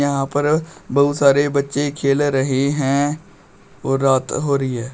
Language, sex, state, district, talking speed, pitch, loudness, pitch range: Hindi, male, Uttar Pradesh, Shamli, 160 wpm, 140 Hz, -18 LUFS, 135-145 Hz